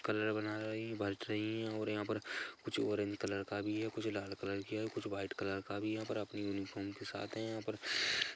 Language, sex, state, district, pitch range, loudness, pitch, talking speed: Hindi, male, Chhattisgarh, Kabirdham, 100-110 Hz, -40 LUFS, 105 Hz, 260 wpm